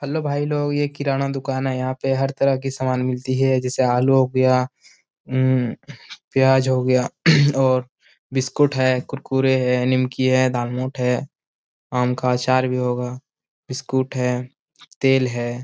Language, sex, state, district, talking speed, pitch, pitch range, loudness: Hindi, male, Bihar, Jamui, 140 wpm, 130 Hz, 125-135 Hz, -20 LUFS